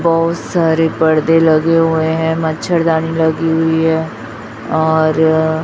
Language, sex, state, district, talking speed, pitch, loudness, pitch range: Hindi, male, Chhattisgarh, Raipur, 115 wpm, 160 Hz, -14 LUFS, 160-165 Hz